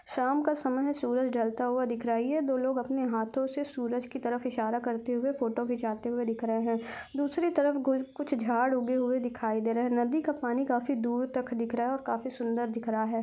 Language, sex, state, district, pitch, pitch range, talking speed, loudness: Hindi, female, Chhattisgarh, Rajnandgaon, 245 Hz, 235-265 Hz, 240 wpm, -30 LUFS